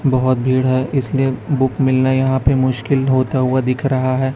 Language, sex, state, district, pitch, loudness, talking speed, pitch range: Hindi, male, Chhattisgarh, Raipur, 130 Hz, -16 LUFS, 190 wpm, 130-135 Hz